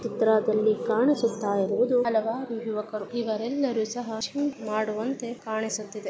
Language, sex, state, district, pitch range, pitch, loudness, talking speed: Kannada, female, Karnataka, Dakshina Kannada, 215-240 Hz, 220 Hz, -27 LUFS, 110 wpm